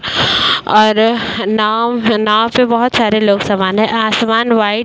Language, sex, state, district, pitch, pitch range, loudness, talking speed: Hindi, female, Uttar Pradesh, Varanasi, 220 Hz, 215-230 Hz, -12 LUFS, 150 wpm